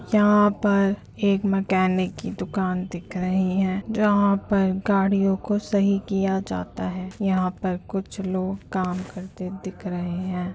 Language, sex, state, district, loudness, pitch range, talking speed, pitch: Hindi, female, Uttar Pradesh, Jyotiba Phule Nagar, -24 LUFS, 185-200 Hz, 140 wpm, 190 Hz